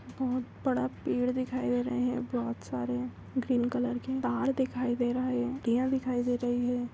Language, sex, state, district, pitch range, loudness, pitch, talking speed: Hindi, female, Andhra Pradesh, Visakhapatnam, 245-255 Hz, -31 LUFS, 245 Hz, 190 wpm